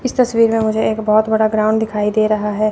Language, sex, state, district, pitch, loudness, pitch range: Hindi, female, Chandigarh, Chandigarh, 220 Hz, -15 LUFS, 215-220 Hz